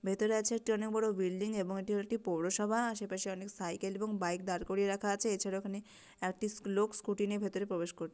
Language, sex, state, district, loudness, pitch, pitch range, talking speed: Bengali, female, West Bengal, Dakshin Dinajpur, -36 LUFS, 200 Hz, 190-215 Hz, 215 wpm